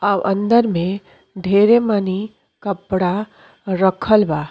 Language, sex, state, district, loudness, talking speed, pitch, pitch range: Bhojpuri, female, Uttar Pradesh, Deoria, -17 LUFS, 105 wpm, 195 Hz, 185-215 Hz